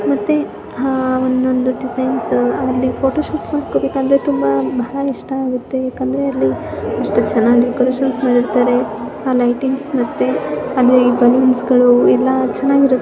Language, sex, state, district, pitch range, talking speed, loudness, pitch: Kannada, female, Karnataka, Chamarajanagar, 240-265 Hz, 115 wpm, -16 LUFS, 255 Hz